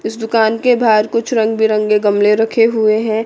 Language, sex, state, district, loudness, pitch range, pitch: Hindi, female, Chandigarh, Chandigarh, -13 LUFS, 215-230 Hz, 220 Hz